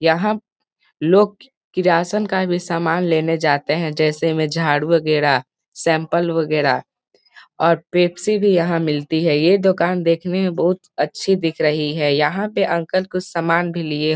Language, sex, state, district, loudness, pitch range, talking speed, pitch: Hindi, male, Bihar, Gopalganj, -18 LUFS, 155-185 Hz, 170 wpm, 170 Hz